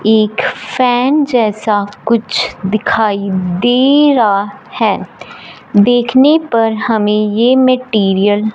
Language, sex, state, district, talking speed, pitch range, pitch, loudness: Hindi, female, Punjab, Fazilka, 100 wpm, 210-250 Hz, 225 Hz, -12 LUFS